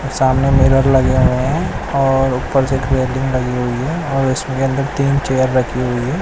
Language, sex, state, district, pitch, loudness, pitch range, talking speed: Hindi, male, Odisha, Nuapada, 135 Hz, -16 LUFS, 130-135 Hz, 195 wpm